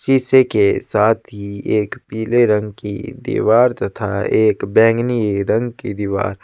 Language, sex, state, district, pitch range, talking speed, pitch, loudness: Hindi, male, Chhattisgarh, Sukma, 100-120 Hz, 150 wpm, 105 Hz, -17 LUFS